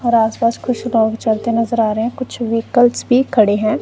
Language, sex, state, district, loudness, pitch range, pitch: Hindi, male, Punjab, Kapurthala, -16 LUFS, 220-245 Hz, 230 Hz